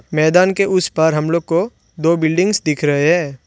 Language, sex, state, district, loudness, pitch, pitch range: Hindi, male, West Bengal, Alipurduar, -16 LUFS, 165 Hz, 155-180 Hz